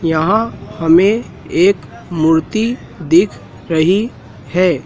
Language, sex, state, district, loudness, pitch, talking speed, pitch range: Hindi, male, Madhya Pradesh, Dhar, -15 LUFS, 180 Hz, 85 wpm, 160-225 Hz